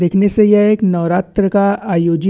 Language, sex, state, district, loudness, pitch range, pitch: Hindi, male, Chhattisgarh, Bastar, -13 LUFS, 175-200 Hz, 195 Hz